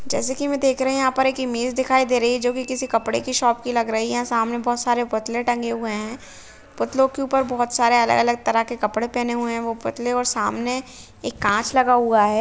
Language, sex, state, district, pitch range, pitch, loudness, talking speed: Bhojpuri, female, Uttar Pradesh, Deoria, 235-255 Hz, 240 Hz, -21 LUFS, 250 wpm